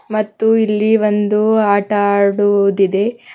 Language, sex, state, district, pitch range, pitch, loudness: Kannada, female, Karnataka, Bidar, 200-215 Hz, 210 Hz, -14 LUFS